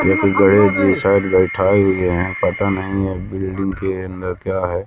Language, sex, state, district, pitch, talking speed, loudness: Hindi, male, Madhya Pradesh, Katni, 95 Hz, 195 wpm, -17 LUFS